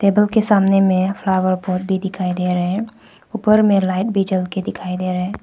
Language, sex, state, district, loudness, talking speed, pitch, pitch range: Hindi, female, Arunachal Pradesh, Papum Pare, -18 LUFS, 210 wpm, 190 Hz, 185-205 Hz